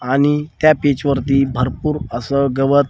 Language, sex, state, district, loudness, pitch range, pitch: Marathi, male, Maharashtra, Washim, -17 LUFS, 135-145 Hz, 140 Hz